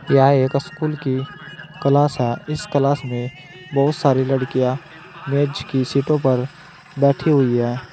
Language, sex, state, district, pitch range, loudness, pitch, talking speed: Hindi, male, Uttar Pradesh, Saharanpur, 130-155 Hz, -19 LUFS, 140 Hz, 145 wpm